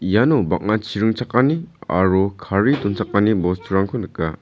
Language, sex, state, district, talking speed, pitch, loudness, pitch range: Garo, male, Meghalaya, South Garo Hills, 120 wpm, 100 Hz, -19 LUFS, 95-115 Hz